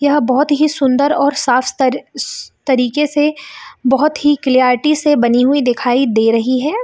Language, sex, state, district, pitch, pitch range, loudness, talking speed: Hindi, female, Chhattisgarh, Bilaspur, 270 Hz, 255-290 Hz, -14 LUFS, 175 wpm